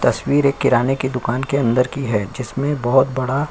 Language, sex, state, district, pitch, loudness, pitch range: Hindi, male, Chhattisgarh, Kabirdham, 130 Hz, -18 LUFS, 125-140 Hz